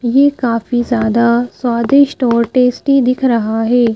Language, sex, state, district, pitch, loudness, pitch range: Hindi, female, Madhya Pradesh, Bhopal, 240 Hz, -13 LUFS, 235-255 Hz